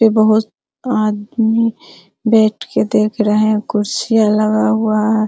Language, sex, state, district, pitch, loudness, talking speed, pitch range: Hindi, female, Bihar, Araria, 220 Hz, -15 LUFS, 135 wpm, 215-225 Hz